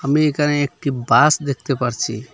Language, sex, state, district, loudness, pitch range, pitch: Bengali, male, Assam, Hailakandi, -18 LUFS, 135-150 Hz, 145 Hz